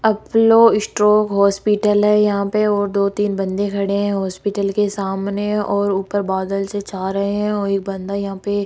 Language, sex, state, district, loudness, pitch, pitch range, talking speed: Hindi, female, Rajasthan, Jaipur, -18 LUFS, 200 Hz, 195-210 Hz, 195 wpm